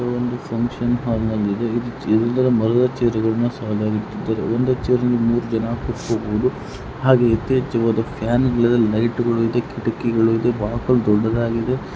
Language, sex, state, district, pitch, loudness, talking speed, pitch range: Kannada, male, Karnataka, Mysore, 115 Hz, -20 LUFS, 105 wpm, 115-120 Hz